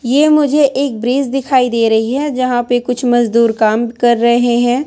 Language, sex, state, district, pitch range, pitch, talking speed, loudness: Hindi, female, Chhattisgarh, Raipur, 235-270 Hz, 245 Hz, 195 wpm, -13 LUFS